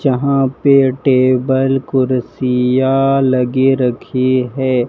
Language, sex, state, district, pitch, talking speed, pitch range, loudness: Hindi, male, Madhya Pradesh, Dhar, 130 Hz, 85 wpm, 130-135 Hz, -14 LUFS